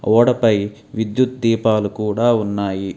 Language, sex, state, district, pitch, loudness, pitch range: Telugu, male, Telangana, Hyderabad, 110 Hz, -18 LUFS, 105-115 Hz